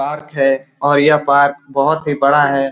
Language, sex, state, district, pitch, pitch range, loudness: Hindi, male, Bihar, Saran, 140 Hz, 135-145 Hz, -14 LUFS